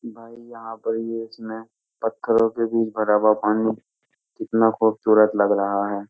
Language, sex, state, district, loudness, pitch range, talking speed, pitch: Hindi, male, Uttar Pradesh, Jyotiba Phule Nagar, -21 LUFS, 110-115 Hz, 160 wpm, 110 Hz